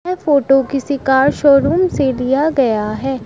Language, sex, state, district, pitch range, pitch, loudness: Hindi, male, Uttar Pradesh, Shamli, 265-290 Hz, 275 Hz, -14 LUFS